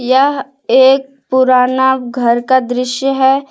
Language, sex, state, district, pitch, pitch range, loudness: Hindi, female, Jharkhand, Palamu, 260 Hz, 250-270 Hz, -12 LUFS